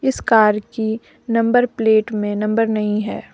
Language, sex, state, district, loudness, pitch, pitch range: Hindi, female, Jharkhand, Deoghar, -18 LUFS, 220 Hz, 215-230 Hz